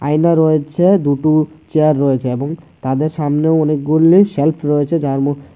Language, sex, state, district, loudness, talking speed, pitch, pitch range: Bengali, male, Tripura, West Tripura, -15 LUFS, 140 wpm, 155 Hz, 145-160 Hz